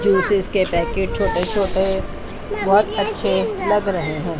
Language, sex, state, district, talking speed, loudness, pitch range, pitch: Hindi, female, Chandigarh, Chandigarh, 135 wpm, -19 LUFS, 175-200 Hz, 190 Hz